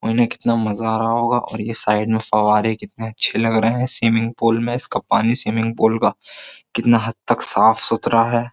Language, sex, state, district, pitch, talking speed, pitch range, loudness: Hindi, male, Uttar Pradesh, Jyotiba Phule Nagar, 115 Hz, 205 wpm, 110-115 Hz, -18 LUFS